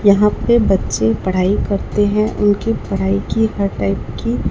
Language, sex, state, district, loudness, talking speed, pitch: Hindi, male, Chhattisgarh, Raipur, -17 LUFS, 160 wpm, 195 Hz